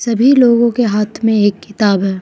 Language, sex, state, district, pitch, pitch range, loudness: Hindi, female, Arunachal Pradesh, Lower Dibang Valley, 220 Hz, 205-235 Hz, -13 LUFS